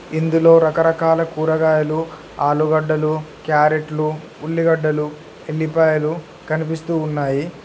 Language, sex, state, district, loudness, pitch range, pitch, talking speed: Telugu, male, Telangana, Hyderabad, -18 LUFS, 155-160 Hz, 155 Hz, 70 wpm